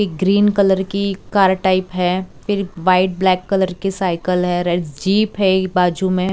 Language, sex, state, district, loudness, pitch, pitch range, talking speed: Hindi, female, Chhattisgarh, Raipur, -17 LUFS, 185 Hz, 180-195 Hz, 190 wpm